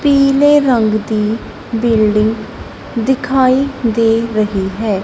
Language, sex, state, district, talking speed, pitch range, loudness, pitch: Punjabi, female, Punjab, Kapurthala, 85 wpm, 215-265 Hz, -14 LUFS, 230 Hz